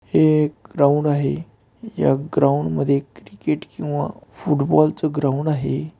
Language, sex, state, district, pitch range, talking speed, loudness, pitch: Marathi, male, Maharashtra, Aurangabad, 140-155 Hz, 130 wpm, -20 LUFS, 145 Hz